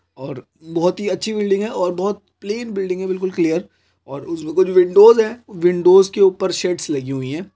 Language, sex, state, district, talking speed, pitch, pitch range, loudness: Hindi, male, Chhattisgarh, Korba, 180 wpm, 190 Hz, 180-215 Hz, -17 LUFS